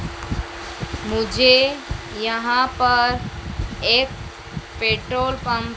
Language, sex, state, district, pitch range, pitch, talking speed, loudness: Hindi, female, Madhya Pradesh, Dhar, 230-255 Hz, 245 Hz, 75 wpm, -19 LUFS